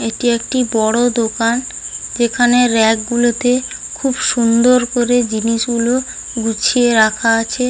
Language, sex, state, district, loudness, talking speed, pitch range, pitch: Bengali, female, West Bengal, Paschim Medinipur, -15 LUFS, 115 wpm, 225-245 Hz, 240 Hz